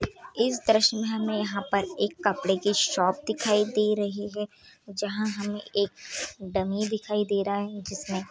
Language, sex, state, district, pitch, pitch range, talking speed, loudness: Hindi, female, Chhattisgarh, Kabirdham, 205 Hz, 200-215 Hz, 165 wpm, -27 LUFS